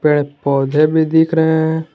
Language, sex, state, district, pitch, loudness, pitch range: Hindi, male, Jharkhand, Garhwa, 155 Hz, -14 LUFS, 145-160 Hz